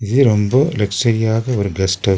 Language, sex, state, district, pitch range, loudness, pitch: Tamil, male, Tamil Nadu, Nilgiris, 100-125 Hz, -16 LUFS, 110 Hz